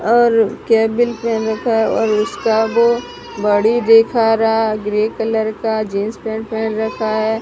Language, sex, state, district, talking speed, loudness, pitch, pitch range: Hindi, female, Odisha, Sambalpur, 160 wpm, -16 LUFS, 220 Hz, 220-225 Hz